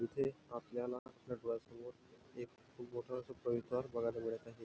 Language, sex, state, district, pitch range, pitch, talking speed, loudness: Marathi, male, Maharashtra, Nagpur, 115-125 Hz, 120 Hz, 155 wpm, -44 LUFS